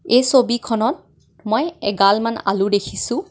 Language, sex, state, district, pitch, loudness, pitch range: Assamese, female, Assam, Kamrup Metropolitan, 220 Hz, -18 LUFS, 200-245 Hz